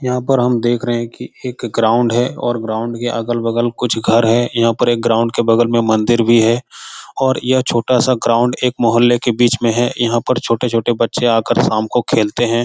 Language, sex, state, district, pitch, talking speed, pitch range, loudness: Hindi, male, Bihar, Jahanabad, 120 Hz, 230 wpm, 115-120 Hz, -15 LUFS